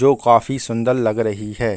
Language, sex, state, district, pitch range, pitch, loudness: Hindi, male, Bihar, Gaya, 110-130 Hz, 115 Hz, -18 LUFS